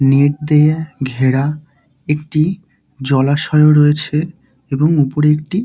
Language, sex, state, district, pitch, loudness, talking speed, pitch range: Bengali, male, West Bengal, Dakshin Dinajpur, 150 Hz, -14 LUFS, 105 wpm, 140-155 Hz